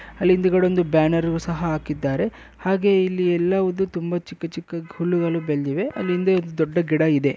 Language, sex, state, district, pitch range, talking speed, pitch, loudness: Kannada, male, Karnataka, Bellary, 165-185 Hz, 145 wpm, 175 Hz, -22 LUFS